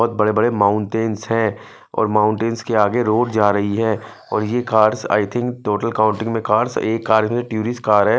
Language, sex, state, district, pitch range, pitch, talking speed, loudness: Hindi, male, Punjab, Fazilka, 105-115 Hz, 110 Hz, 205 wpm, -18 LUFS